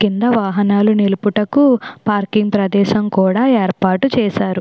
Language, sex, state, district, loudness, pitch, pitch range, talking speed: Telugu, female, Andhra Pradesh, Chittoor, -15 LUFS, 210 Hz, 195-225 Hz, 105 wpm